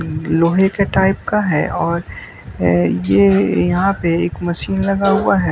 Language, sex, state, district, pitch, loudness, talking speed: Hindi, male, Bihar, West Champaran, 170 Hz, -16 LUFS, 150 wpm